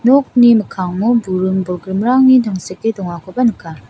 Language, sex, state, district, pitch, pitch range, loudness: Garo, female, Meghalaya, South Garo Hills, 200 Hz, 185-240 Hz, -14 LUFS